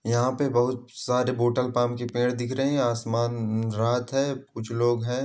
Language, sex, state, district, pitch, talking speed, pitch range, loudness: Hindi, male, Chhattisgarh, Balrampur, 120 Hz, 195 wpm, 120-125 Hz, -26 LUFS